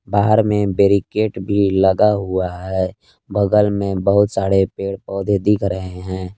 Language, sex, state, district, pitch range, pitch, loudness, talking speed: Hindi, male, Jharkhand, Palamu, 95-100 Hz, 100 Hz, -17 LUFS, 150 wpm